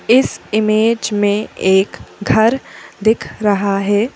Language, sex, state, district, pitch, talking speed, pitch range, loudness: Hindi, female, Madhya Pradesh, Bhopal, 215 Hz, 115 wpm, 205-225 Hz, -15 LUFS